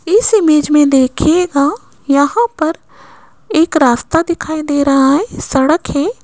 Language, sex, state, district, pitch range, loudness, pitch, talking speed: Hindi, female, Rajasthan, Jaipur, 285-340 Hz, -13 LUFS, 310 Hz, 135 wpm